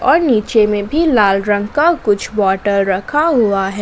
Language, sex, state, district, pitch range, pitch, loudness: Hindi, female, Jharkhand, Garhwa, 200-255 Hz, 205 Hz, -14 LUFS